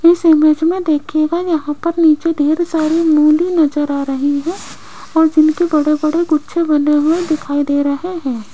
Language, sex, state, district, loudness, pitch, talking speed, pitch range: Hindi, female, Rajasthan, Jaipur, -14 LUFS, 310 Hz, 175 wpm, 295-330 Hz